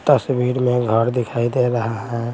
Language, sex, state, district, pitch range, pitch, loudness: Hindi, male, Bihar, Patna, 115-125 Hz, 120 Hz, -19 LUFS